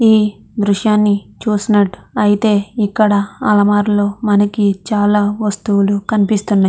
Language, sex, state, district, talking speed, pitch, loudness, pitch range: Telugu, female, Andhra Pradesh, Chittoor, 90 wpm, 205 Hz, -14 LUFS, 205-210 Hz